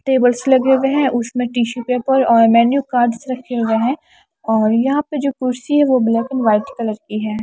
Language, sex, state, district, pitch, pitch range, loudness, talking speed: Hindi, female, Haryana, Charkhi Dadri, 250 Hz, 230-265 Hz, -16 LUFS, 210 wpm